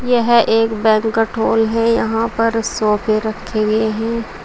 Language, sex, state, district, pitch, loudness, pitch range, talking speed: Hindi, female, Uttar Pradesh, Saharanpur, 225 Hz, -16 LUFS, 220-230 Hz, 150 wpm